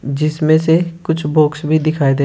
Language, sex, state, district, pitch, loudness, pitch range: Hindi, male, Uttar Pradesh, Shamli, 155 Hz, -15 LUFS, 150-160 Hz